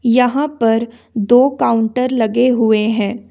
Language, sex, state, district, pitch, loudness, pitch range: Hindi, female, Jharkhand, Ranchi, 235 Hz, -15 LUFS, 225-250 Hz